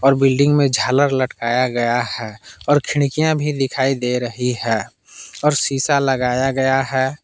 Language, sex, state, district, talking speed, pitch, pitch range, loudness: Hindi, male, Jharkhand, Palamu, 160 wpm, 135 Hz, 125-140 Hz, -18 LUFS